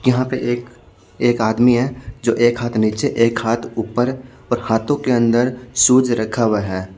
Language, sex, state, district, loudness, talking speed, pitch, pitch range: Hindi, male, Maharashtra, Washim, -17 LUFS, 180 wpm, 120 Hz, 115-125 Hz